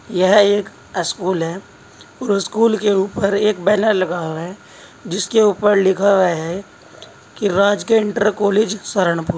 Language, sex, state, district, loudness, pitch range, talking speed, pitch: Hindi, male, Uttar Pradesh, Saharanpur, -17 LUFS, 185-210 Hz, 140 wpm, 200 Hz